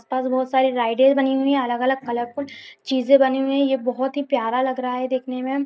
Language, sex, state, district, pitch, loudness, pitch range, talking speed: Hindi, female, Jharkhand, Jamtara, 260 Hz, -21 LUFS, 255-270 Hz, 245 wpm